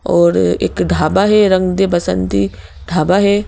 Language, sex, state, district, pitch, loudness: Hindi, female, Madhya Pradesh, Bhopal, 175 Hz, -14 LUFS